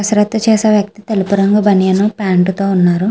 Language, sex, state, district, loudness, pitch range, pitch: Telugu, female, Andhra Pradesh, Srikakulam, -13 LUFS, 190-210 Hz, 205 Hz